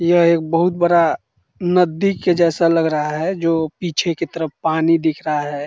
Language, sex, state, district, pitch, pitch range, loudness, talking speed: Hindi, male, Bihar, Saran, 165 Hz, 160-175 Hz, -17 LUFS, 190 wpm